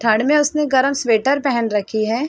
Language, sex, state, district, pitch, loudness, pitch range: Hindi, female, Bihar, Sitamarhi, 260 Hz, -17 LUFS, 220-285 Hz